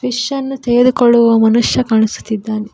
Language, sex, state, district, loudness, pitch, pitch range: Kannada, female, Karnataka, Koppal, -13 LUFS, 235 Hz, 220-250 Hz